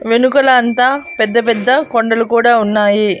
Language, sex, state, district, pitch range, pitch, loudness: Telugu, female, Andhra Pradesh, Annamaya, 225-255 Hz, 235 Hz, -12 LUFS